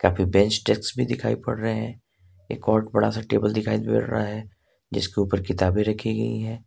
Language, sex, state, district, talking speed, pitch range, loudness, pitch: Hindi, male, Jharkhand, Ranchi, 205 wpm, 100-110 Hz, -24 LUFS, 110 Hz